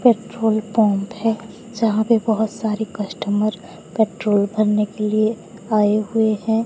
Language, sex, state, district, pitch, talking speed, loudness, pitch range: Hindi, female, Odisha, Sambalpur, 215 Hz, 135 wpm, -20 LUFS, 210-225 Hz